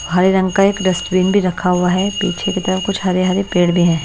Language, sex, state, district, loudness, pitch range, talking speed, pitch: Hindi, female, Punjab, Kapurthala, -16 LUFS, 180-195 Hz, 265 wpm, 185 Hz